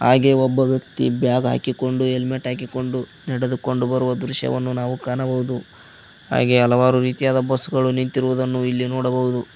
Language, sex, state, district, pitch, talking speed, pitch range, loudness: Kannada, male, Karnataka, Koppal, 130 Hz, 125 wpm, 125-130 Hz, -20 LUFS